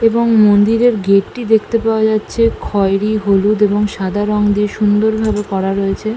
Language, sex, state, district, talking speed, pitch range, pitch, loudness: Bengali, female, West Bengal, North 24 Parganas, 155 wpm, 200-220 Hz, 210 Hz, -14 LUFS